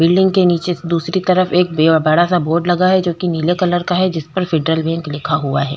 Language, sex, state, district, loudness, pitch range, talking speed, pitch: Hindi, female, Chhattisgarh, Korba, -15 LUFS, 160-180 Hz, 250 wpm, 175 Hz